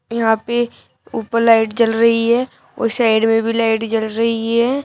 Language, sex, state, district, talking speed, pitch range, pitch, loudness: Hindi, female, Uttar Pradesh, Shamli, 185 wpm, 225-235 Hz, 230 Hz, -16 LUFS